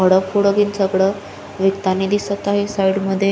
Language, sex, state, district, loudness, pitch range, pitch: Marathi, female, Maharashtra, Chandrapur, -18 LUFS, 190-200 Hz, 195 Hz